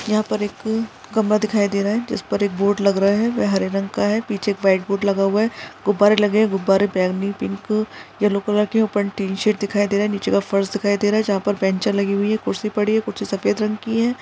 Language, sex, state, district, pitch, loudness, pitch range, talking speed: Hindi, female, Maharashtra, Dhule, 205 Hz, -20 LUFS, 200-215 Hz, 275 wpm